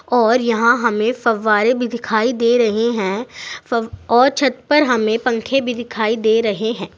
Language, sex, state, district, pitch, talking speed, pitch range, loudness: Hindi, female, Uttar Pradesh, Saharanpur, 235 Hz, 170 wpm, 220-245 Hz, -17 LUFS